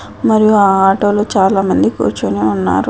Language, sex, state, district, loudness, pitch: Telugu, female, Telangana, Adilabad, -12 LUFS, 195 Hz